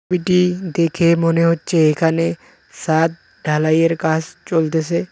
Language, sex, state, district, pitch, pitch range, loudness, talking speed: Bengali, male, West Bengal, Cooch Behar, 165 Hz, 160-170 Hz, -17 LUFS, 105 wpm